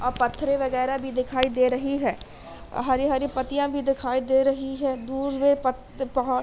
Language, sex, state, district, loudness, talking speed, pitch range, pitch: Hindi, female, Uttar Pradesh, Hamirpur, -25 LUFS, 185 wpm, 255-275 Hz, 265 Hz